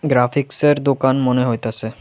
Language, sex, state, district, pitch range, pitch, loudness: Bengali, female, Tripura, West Tripura, 125-140 Hz, 130 Hz, -17 LUFS